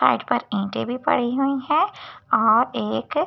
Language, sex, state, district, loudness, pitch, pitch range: Hindi, female, Delhi, New Delhi, -22 LUFS, 270 Hz, 245-310 Hz